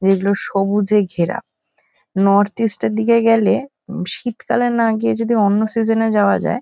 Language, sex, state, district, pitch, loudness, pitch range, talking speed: Bengali, female, West Bengal, Kolkata, 215 Hz, -17 LUFS, 200-230 Hz, 165 wpm